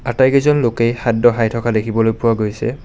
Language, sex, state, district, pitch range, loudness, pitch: Assamese, male, Assam, Kamrup Metropolitan, 115-120 Hz, -16 LUFS, 115 Hz